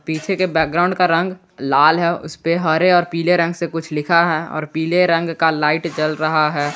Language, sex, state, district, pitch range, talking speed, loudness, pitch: Hindi, male, Jharkhand, Garhwa, 155-175 Hz, 215 wpm, -17 LUFS, 165 Hz